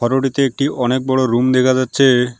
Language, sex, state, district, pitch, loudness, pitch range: Bengali, male, West Bengal, Alipurduar, 130 Hz, -15 LUFS, 125-135 Hz